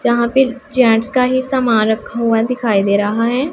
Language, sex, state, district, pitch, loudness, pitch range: Hindi, female, Punjab, Pathankot, 235 Hz, -15 LUFS, 225-260 Hz